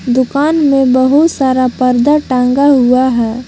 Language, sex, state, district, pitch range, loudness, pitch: Hindi, female, Jharkhand, Palamu, 250-280 Hz, -11 LUFS, 260 Hz